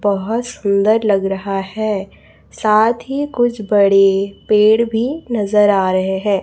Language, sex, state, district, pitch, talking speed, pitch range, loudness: Hindi, female, Chhattisgarh, Raipur, 210 Hz, 140 wpm, 195-225 Hz, -16 LUFS